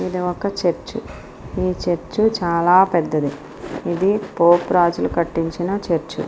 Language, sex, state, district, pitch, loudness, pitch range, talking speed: Telugu, female, Andhra Pradesh, Srikakulam, 175 Hz, -19 LUFS, 165-185 Hz, 115 wpm